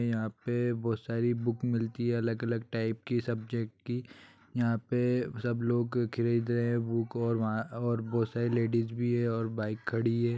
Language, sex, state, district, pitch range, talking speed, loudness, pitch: Hindi, male, Bihar, Gopalganj, 115-120 Hz, 185 wpm, -32 LUFS, 115 Hz